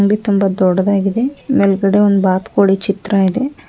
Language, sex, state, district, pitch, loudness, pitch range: Kannada, female, Karnataka, Mysore, 200 Hz, -14 LUFS, 195-210 Hz